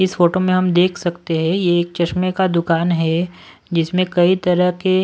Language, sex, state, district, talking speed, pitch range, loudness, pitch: Hindi, male, Punjab, Pathankot, 200 wpm, 170-185 Hz, -17 LUFS, 175 Hz